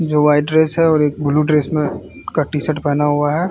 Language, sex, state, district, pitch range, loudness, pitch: Hindi, male, Uttar Pradesh, Varanasi, 145-155 Hz, -16 LUFS, 150 Hz